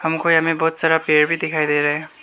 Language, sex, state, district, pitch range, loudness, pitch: Hindi, male, Arunachal Pradesh, Lower Dibang Valley, 150-165 Hz, -17 LUFS, 160 Hz